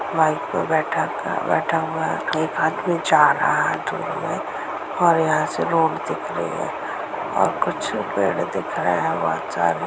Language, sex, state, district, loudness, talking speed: Hindi, female, Chhattisgarh, Rajnandgaon, -21 LUFS, 160 wpm